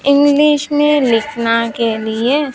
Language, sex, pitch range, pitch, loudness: Hindi, female, 230-290 Hz, 275 Hz, -14 LUFS